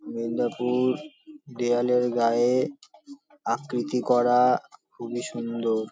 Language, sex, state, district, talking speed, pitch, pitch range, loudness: Bengali, male, West Bengal, Paschim Medinipur, 90 wpm, 125 Hz, 120-130 Hz, -25 LUFS